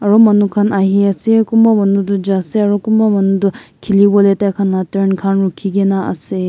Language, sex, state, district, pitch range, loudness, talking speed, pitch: Nagamese, male, Nagaland, Kohima, 195-205 Hz, -13 LUFS, 195 wpm, 200 Hz